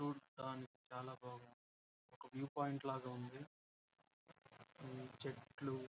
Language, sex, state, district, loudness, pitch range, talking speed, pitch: Telugu, male, Andhra Pradesh, Krishna, -49 LUFS, 125-135 Hz, 110 wpm, 130 Hz